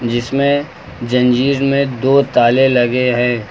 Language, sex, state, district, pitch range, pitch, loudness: Hindi, male, Uttar Pradesh, Lucknow, 120-135 Hz, 125 Hz, -14 LUFS